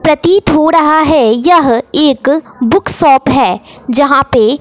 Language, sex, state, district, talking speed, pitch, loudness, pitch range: Hindi, female, Bihar, West Champaran, 145 wpm, 290 Hz, -9 LUFS, 270-315 Hz